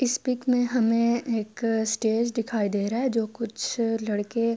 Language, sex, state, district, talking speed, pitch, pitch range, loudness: Urdu, female, Andhra Pradesh, Anantapur, 170 wpm, 230 Hz, 220-240 Hz, -26 LUFS